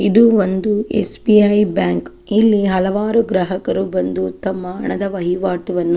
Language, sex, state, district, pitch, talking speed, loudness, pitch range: Kannada, female, Karnataka, Chamarajanagar, 190 Hz, 130 wpm, -16 LUFS, 175-210 Hz